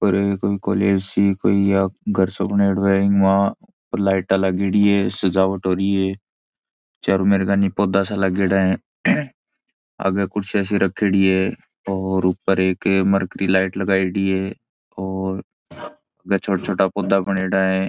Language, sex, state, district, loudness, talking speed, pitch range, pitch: Marwari, male, Rajasthan, Churu, -19 LUFS, 140 wpm, 95-100 Hz, 95 Hz